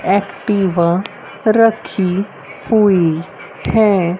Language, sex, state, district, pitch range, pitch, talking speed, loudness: Hindi, female, Haryana, Rohtak, 180-210 Hz, 195 Hz, 55 wpm, -15 LUFS